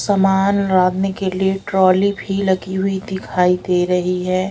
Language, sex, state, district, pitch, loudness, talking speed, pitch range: Hindi, female, Odisha, Sambalpur, 190 Hz, -17 LUFS, 160 wpm, 185-195 Hz